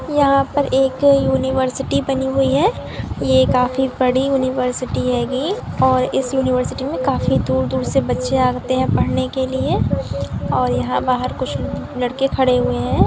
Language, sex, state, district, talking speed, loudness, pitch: Hindi, female, Andhra Pradesh, Anantapur, 155 wpm, -18 LUFS, 255 Hz